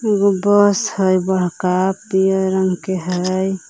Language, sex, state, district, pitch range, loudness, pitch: Magahi, female, Jharkhand, Palamu, 185-200 Hz, -17 LUFS, 190 Hz